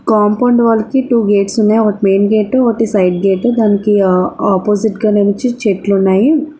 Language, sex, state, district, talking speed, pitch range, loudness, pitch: Telugu, female, Andhra Pradesh, Guntur, 175 wpm, 200-230 Hz, -12 LUFS, 210 Hz